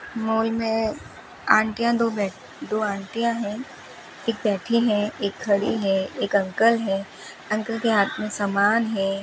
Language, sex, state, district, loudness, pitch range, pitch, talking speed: Hindi, female, Rajasthan, Bikaner, -23 LUFS, 200-230 Hz, 215 Hz, 150 wpm